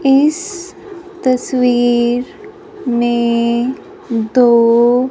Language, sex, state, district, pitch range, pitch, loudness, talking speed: Hindi, female, Punjab, Fazilka, 240-365 Hz, 255 Hz, -14 LUFS, 45 wpm